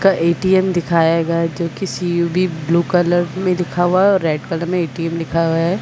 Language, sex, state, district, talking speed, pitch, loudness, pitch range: Hindi, female, Chhattisgarh, Bilaspur, 215 wpm, 170 Hz, -17 LUFS, 165-180 Hz